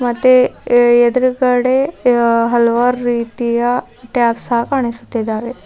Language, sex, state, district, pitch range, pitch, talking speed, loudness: Kannada, female, Karnataka, Bidar, 235-250 Hz, 240 Hz, 75 wpm, -14 LUFS